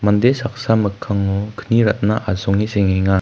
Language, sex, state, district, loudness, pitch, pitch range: Garo, male, Meghalaya, West Garo Hills, -18 LUFS, 105 Hz, 100-110 Hz